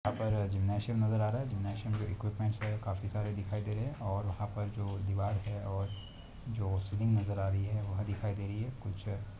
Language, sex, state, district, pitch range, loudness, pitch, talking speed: Hindi, male, Maharashtra, Pune, 100-105 Hz, -36 LUFS, 105 Hz, 235 wpm